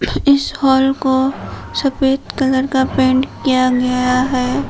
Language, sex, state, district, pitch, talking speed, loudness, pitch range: Hindi, female, Jharkhand, Palamu, 265 Hz, 130 wpm, -15 LUFS, 255-270 Hz